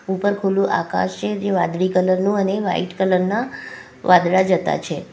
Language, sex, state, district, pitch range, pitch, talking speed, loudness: Gujarati, female, Gujarat, Valsad, 180-195 Hz, 185 Hz, 175 wpm, -19 LUFS